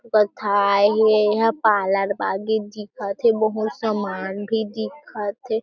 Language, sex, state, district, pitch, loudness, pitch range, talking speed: Chhattisgarhi, female, Chhattisgarh, Jashpur, 215 Hz, -21 LUFS, 200-220 Hz, 130 wpm